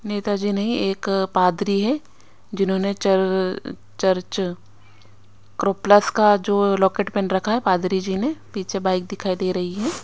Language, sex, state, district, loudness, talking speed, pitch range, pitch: Hindi, female, Chandigarh, Chandigarh, -21 LUFS, 150 wpm, 185-205 Hz, 195 Hz